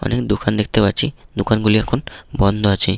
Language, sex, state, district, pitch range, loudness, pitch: Bengali, male, West Bengal, Malda, 100-115 Hz, -18 LUFS, 105 Hz